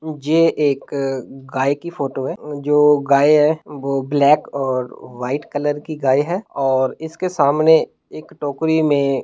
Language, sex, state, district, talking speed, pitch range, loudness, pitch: Hindi, male, Bihar, Muzaffarpur, 155 wpm, 135-155 Hz, -18 LUFS, 145 Hz